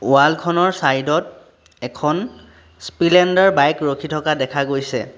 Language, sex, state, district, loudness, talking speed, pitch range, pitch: Assamese, male, Assam, Sonitpur, -17 LUFS, 125 wpm, 135-170 Hz, 145 Hz